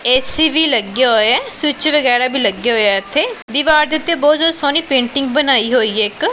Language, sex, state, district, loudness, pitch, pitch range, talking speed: Punjabi, female, Punjab, Pathankot, -13 LUFS, 275 Hz, 240-305 Hz, 210 wpm